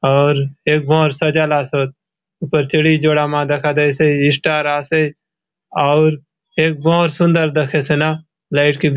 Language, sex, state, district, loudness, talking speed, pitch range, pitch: Halbi, male, Chhattisgarh, Bastar, -15 LUFS, 140 wpm, 145-160 Hz, 155 Hz